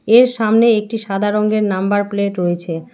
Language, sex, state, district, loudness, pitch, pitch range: Bengali, female, West Bengal, Alipurduar, -16 LUFS, 205 Hz, 195-220 Hz